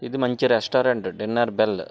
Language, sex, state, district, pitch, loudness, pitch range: Telugu, male, Andhra Pradesh, Srikakulam, 125 Hz, -22 LUFS, 115-130 Hz